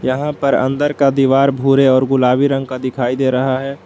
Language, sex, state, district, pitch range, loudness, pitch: Hindi, male, Jharkhand, Palamu, 130-140 Hz, -15 LUFS, 135 Hz